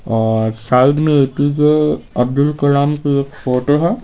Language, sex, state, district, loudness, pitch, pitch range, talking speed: Hindi, male, Bihar, Patna, -15 LUFS, 140 Hz, 125-150 Hz, 150 wpm